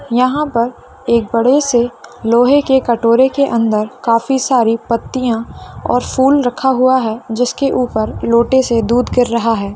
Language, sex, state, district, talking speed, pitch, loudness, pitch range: Hindi, female, Bihar, Muzaffarpur, 160 wpm, 245 Hz, -14 LUFS, 230-260 Hz